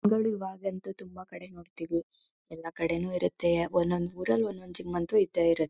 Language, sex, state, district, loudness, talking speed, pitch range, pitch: Kannada, female, Karnataka, Mysore, -30 LUFS, 170 wpm, 170-190 Hz, 175 Hz